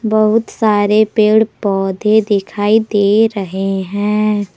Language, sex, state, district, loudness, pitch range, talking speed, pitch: Hindi, female, Jharkhand, Palamu, -14 LUFS, 200-220 Hz, 105 wpm, 210 Hz